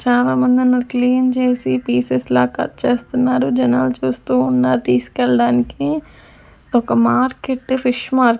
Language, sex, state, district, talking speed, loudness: Telugu, female, Andhra Pradesh, Sri Satya Sai, 120 wpm, -17 LUFS